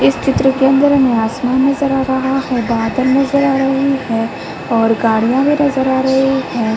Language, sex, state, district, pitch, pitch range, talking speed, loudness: Hindi, female, Uttar Pradesh, Deoria, 265 Hz, 230-270 Hz, 195 wpm, -14 LUFS